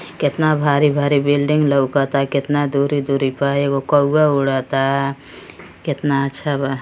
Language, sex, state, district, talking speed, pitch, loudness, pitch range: Bhojpuri, male, Uttar Pradesh, Gorakhpur, 130 wpm, 140 Hz, -17 LUFS, 140-145 Hz